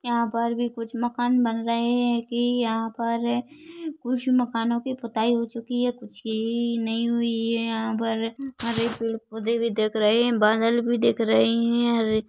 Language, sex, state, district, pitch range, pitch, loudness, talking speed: Hindi, female, Chhattisgarh, Bilaspur, 225-240 Hz, 235 Hz, -24 LUFS, 190 wpm